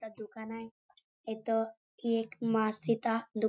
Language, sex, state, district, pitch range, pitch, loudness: Marathi, female, Maharashtra, Chandrapur, 220-230 Hz, 225 Hz, -34 LUFS